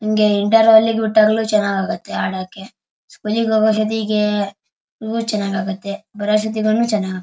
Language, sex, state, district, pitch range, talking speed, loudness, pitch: Kannada, male, Karnataka, Shimoga, 205-220 Hz, 155 wpm, -17 LUFS, 215 Hz